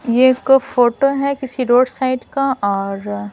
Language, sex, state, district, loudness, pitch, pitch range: Hindi, female, Bihar, Patna, -16 LUFS, 255 Hz, 235-270 Hz